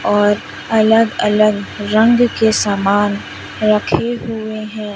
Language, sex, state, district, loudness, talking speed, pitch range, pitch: Hindi, female, Madhya Pradesh, Umaria, -15 LUFS, 110 wpm, 205-220 Hz, 215 Hz